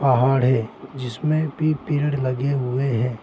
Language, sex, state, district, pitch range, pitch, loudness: Hindi, male, Chhattisgarh, Bilaspur, 125-145 Hz, 135 Hz, -22 LUFS